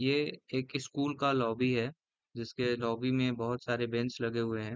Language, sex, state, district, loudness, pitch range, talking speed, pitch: Hindi, male, Uttar Pradesh, Gorakhpur, -33 LUFS, 115-130 Hz, 190 wpm, 125 Hz